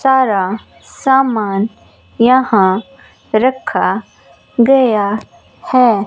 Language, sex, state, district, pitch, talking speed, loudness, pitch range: Hindi, female, Rajasthan, Bikaner, 235 Hz, 60 wpm, -14 LUFS, 210-260 Hz